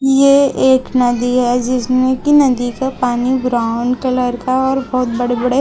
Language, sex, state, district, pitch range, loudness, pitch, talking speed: Hindi, female, Chhattisgarh, Raipur, 245-265 Hz, -14 LUFS, 255 Hz, 170 wpm